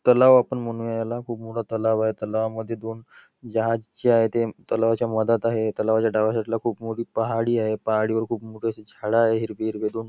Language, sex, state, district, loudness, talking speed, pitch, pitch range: Marathi, male, Maharashtra, Nagpur, -23 LUFS, 200 wpm, 115 Hz, 110-115 Hz